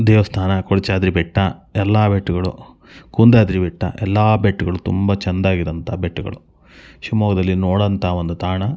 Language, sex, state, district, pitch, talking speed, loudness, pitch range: Kannada, male, Karnataka, Shimoga, 95 Hz, 115 wpm, -17 LUFS, 90-105 Hz